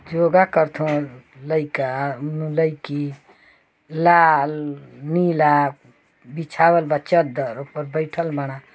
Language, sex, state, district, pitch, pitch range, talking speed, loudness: Bhojpuri, male, Uttar Pradesh, Ghazipur, 150 Hz, 140-165 Hz, 90 wpm, -20 LUFS